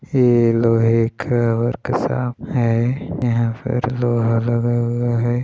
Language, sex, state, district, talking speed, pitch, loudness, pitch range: Hindi, male, Chhattisgarh, Bilaspur, 120 wpm, 120 Hz, -18 LUFS, 115-125 Hz